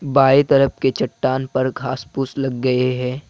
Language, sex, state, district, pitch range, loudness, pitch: Hindi, male, Assam, Kamrup Metropolitan, 130-135 Hz, -18 LUFS, 130 Hz